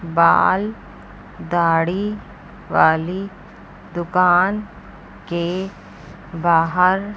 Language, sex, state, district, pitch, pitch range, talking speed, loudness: Hindi, female, Chandigarh, Chandigarh, 180 Hz, 170-195 Hz, 50 wpm, -18 LUFS